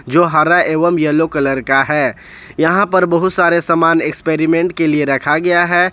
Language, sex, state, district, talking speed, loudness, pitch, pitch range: Hindi, male, Jharkhand, Ranchi, 180 wpm, -13 LUFS, 165 Hz, 150-175 Hz